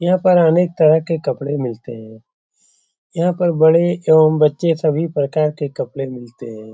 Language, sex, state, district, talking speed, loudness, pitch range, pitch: Hindi, male, Bihar, Saran, 180 wpm, -16 LUFS, 135-170 Hz, 155 Hz